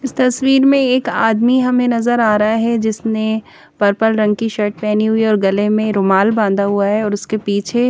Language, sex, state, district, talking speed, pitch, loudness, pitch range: Hindi, female, Chandigarh, Chandigarh, 205 wpm, 220 Hz, -15 LUFS, 210-240 Hz